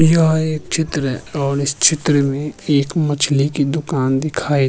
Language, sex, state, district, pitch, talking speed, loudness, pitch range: Hindi, male, Uttarakhand, Tehri Garhwal, 145 Hz, 180 wpm, -17 LUFS, 140-160 Hz